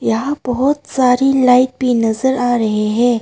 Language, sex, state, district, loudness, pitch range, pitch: Hindi, female, Arunachal Pradesh, Papum Pare, -15 LUFS, 230-265 Hz, 250 Hz